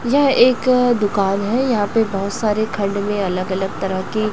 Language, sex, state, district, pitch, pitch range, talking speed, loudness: Hindi, female, Chhattisgarh, Raipur, 210 Hz, 195-240 Hz, 195 wpm, -18 LUFS